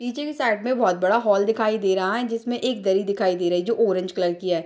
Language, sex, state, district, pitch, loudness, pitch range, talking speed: Hindi, female, Bihar, Darbhanga, 210 Hz, -22 LUFS, 185-235 Hz, 285 wpm